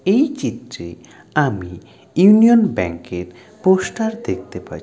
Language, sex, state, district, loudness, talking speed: Bengali, male, West Bengal, Jalpaiguri, -17 LUFS, 110 wpm